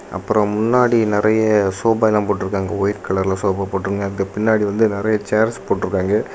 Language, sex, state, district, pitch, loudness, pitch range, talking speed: Tamil, male, Tamil Nadu, Kanyakumari, 105 Hz, -18 LUFS, 100-110 Hz, 150 wpm